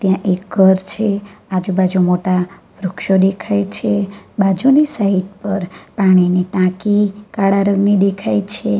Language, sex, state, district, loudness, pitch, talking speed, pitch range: Gujarati, female, Gujarat, Valsad, -16 LUFS, 190 Hz, 125 wpm, 180-200 Hz